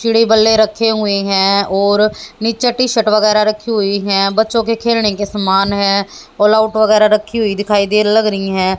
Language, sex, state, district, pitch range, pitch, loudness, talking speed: Hindi, female, Haryana, Jhajjar, 200-220 Hz, 215 Hz, -13 LUFS, 185 wpm